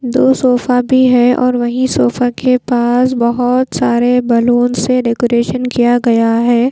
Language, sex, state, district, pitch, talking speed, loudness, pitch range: Hindi, female, Bihar, Patna, 245 Hz, 150 wpm, -12 LUFS, 240-250 Hz